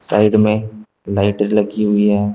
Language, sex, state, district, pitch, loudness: Hindi, male, Uttar Pradesh, Shamli, 105 Hz, -16 LUFS